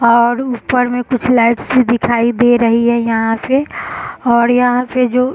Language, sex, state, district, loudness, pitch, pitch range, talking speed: Hindi, female, Bihar, East Champaran, -13 LUFS, 245 Hz, 235-250 Hz, 190 wpm